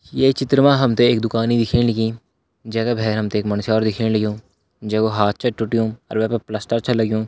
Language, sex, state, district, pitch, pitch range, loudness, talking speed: Garhwali, male, Uttarakhand, Uttarkashi, 110 Hz, 110-120 Hz, -19 LUFS, 240 wpm